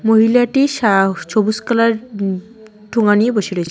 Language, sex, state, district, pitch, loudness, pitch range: Bengali, female, West Bengal, Cooch Behar, 220 Hz, -15 LUFS, 205-230 Hz